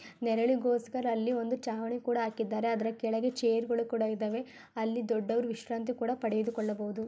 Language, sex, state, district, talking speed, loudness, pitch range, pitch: Kannada, female, Karnataka, Gulbarga, 135 wpm, -32 LUFS, 225-240 Hz, 230 Hz